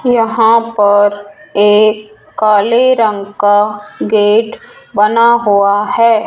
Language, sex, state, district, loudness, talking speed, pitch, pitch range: Hindi, female, Rajasthan, Jaipur, -11 LUFS, 95 wpm, 215 Hz, 205-230 Hz